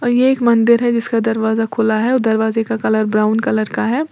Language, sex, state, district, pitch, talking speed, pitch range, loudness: Hindi, female, Uttar Pradesh, Lalitpur, 225 Hz, 220 wpm, 220-240 Hz, -15 LUFS